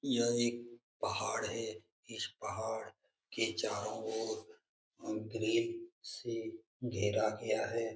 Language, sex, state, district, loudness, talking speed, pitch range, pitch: Hindi, male, Bihar, Jamui, -38 LUFS, 120 wpm, 110-140 Hz, 120 Hz